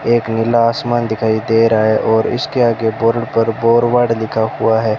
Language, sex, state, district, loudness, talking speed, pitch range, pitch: Hindi, male, Rajasthan, Bikaner, -14 LUFS, 190 wpm, 110-115 Hz, 115 Hz